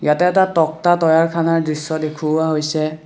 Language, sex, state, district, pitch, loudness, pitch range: Assamese, male, Assam, Kamrup Metropolitan, 160 Hz, -17 LUFS, 155-165 Hz